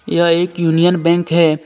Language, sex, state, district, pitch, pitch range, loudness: Hindi, male, Jharkhand, Deoghar, 170 Hz, 165-175 Hz, -14 LUFS